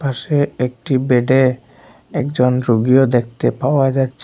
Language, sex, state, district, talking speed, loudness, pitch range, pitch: Bengali, male, Assam, Hailakandi, 125 wpm, -16 LUFS, 125-135 Hz, 130 Hz